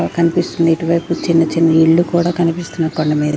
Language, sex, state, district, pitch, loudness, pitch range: Telugu, female, Andhra Pradesh, Sri Satya Sai, 165 Hz, -15 LUFS, 160-170 Hz